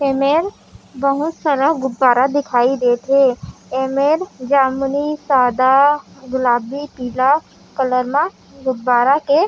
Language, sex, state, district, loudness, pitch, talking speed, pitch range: Chhattisgarhi, female, Chhattisgarh, Raigarh, -16 LUFS, 270 Hz, 110 wpm, 255-285 Hz